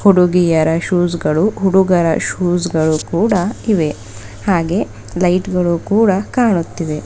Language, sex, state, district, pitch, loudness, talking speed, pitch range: Kannada, female, Karnataka, Bidar, 180 Hz, -15 LUFS, 95 wpm, 165-195 Hz